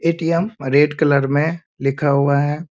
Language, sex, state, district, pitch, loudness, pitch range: Hindi, male, Bihar, Jamui, 150 Hz, -18 LUFS, 140-165 Hz